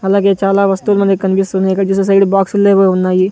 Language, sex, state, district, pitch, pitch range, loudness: Telugu, male, Andhra Pradesh, Sri Satya Sai, 195 Hz, 190-195 Hz, -12 LUFS